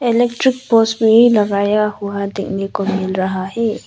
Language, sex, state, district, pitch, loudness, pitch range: Hindi, female, Arunachal Pradesh, Lower Dibang Valley, 210 Hz, -16 LUFS, 200-230 Hz